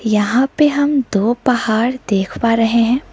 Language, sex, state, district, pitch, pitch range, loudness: Hindi, female, Sikkim, Gangtok, 235 Hz, 220-260 Hz, -15 LUFS